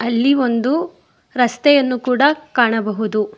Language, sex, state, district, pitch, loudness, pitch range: Kannada, female, Karnataka, Bangalore, 250 Hz, -16 LUFS, 230-280 Hz